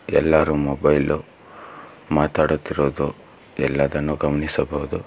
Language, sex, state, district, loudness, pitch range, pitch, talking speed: Kannada, male, Karnataka, Bangalore, -21 LUFS, 70-75 Hz, 75 Hz, 60 wpm